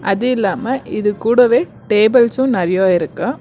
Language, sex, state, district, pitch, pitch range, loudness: Tamil, female, Karnataka, Bangalore, 230 Hz, 195-250 Hz, -15 LUFS